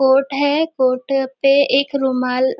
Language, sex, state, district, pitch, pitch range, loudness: Hindi, female, Maharashtra, Nagpur, 270 Hz, 260-280 Hz, -17 LUFS